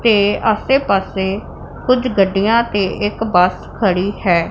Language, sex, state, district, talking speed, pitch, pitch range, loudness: Punjabi, female, Punjab, Pathankot, 135 wpm, 200 Hz, 190-225 Hz, -16 LUFS